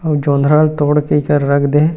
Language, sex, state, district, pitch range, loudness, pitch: Chhattisgarhi, male, Chhattisgarh, Rajnandgaon, 145-150 Hz, -13 LUFS, 150 Hz